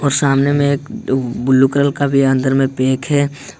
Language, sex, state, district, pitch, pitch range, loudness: Hindi, male, Jharkhand, Ranchi, 135 Hz, 130-140 Hz, -15 LUFS